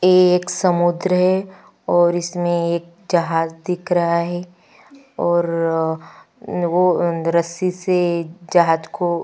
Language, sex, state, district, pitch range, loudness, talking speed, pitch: Hindi, female, Chhattisgarh, Kabirdham, 170-180 Hz, -19 LUFS, 110 wpm, 175 Hz